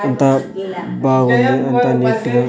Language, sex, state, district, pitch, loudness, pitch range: Telugu, male, Andhra Pradesh, Sri Satya Sai, 130 Hz, -15 LUFS, 125-135 Hz